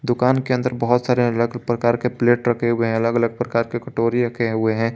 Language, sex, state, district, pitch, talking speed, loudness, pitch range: Hindi, male, Jharkhand, Garhwa, 120 Hz, 255 wpm, -20 LUFS, 115-125 Hz